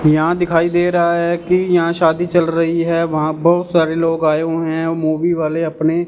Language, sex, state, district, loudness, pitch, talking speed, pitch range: Hindi, male, Punjab, Fazilka, -16 LUFS, 165 Hz, 205 wpm, 160-175 Hz